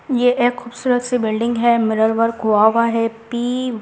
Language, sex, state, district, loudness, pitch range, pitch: Hindi, female, Delhi, New Delhi, -17 LUFS, 225-245 Hz, 235 Hz